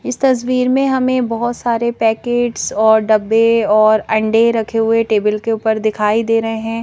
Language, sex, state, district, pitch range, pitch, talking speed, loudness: Hindi, female, Madhya Pradesh, Bhopal, 220-240 Hz, 225 Hz, 175 wpm, -15 LUFS